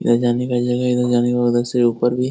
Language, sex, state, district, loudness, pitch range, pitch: Hindi, male, Bihar, Jahanabad, -18 LUFS, 120-125 Hz, 120 Hz